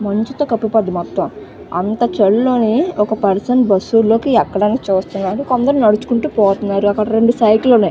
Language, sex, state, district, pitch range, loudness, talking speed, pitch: Telugu, female, Andhra Pradesh, Visakhapatnam, 200-240 Hz, -15 LUFS, 165 wpm, 220 Hz